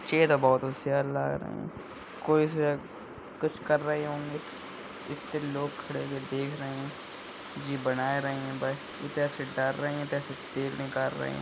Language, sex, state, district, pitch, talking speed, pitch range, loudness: Hindi, male, Uttar Pradesh, Budaun, 140 Hz, 190 wpm, 135-145 Hz, -31 LUFS